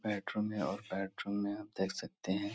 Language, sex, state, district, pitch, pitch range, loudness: Hindi, male, Uttar Pradesh, Etah, 100 Hz, 95-105 Hz, -38 LUFS